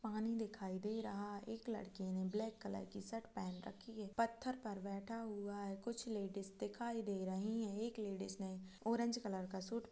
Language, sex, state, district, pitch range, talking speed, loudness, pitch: Hindi, female, Chhattisgarh, Kabirdham, 195-225 Hz, 205 wpm, -45 LUFS, 210 Hz